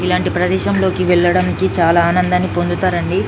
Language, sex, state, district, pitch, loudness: Telugu, female, Telangana, Nalgonda, 170 Hz, -15 LUFS